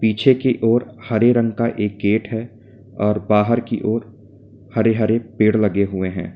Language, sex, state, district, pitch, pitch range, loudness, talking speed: Hindi, male, Uttar Pradesh, Lalitpur, 110 Hz, 105-115 Hz, -19 LUFS, 170 wpm